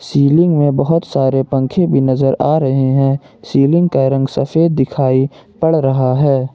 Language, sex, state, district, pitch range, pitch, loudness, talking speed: Hindi, male, Jharkhand, Ranchi, 135-155 Hz, 135 Hz, -14 LUFS, 165 wpm